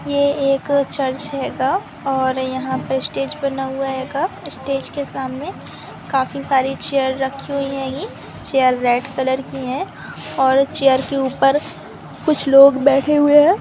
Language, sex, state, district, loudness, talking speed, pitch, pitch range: Hindi, female, Andhra Pradesh, Anantapur, -18 LUFS, 150 wpm, 270 Hz, 265-280 Hz